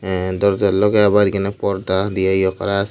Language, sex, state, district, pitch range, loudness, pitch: Bengali, male, Tripura, Unakoti, 95-100 Hz, -17 LUFS, 100 Hz